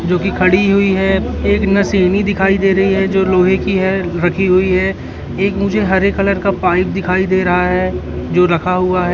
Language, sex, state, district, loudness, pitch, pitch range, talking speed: Hindi, male, Madhya Pradesh, Katni, -14 LUFS, 190 Hz, 185-195 Hz, 205 wpm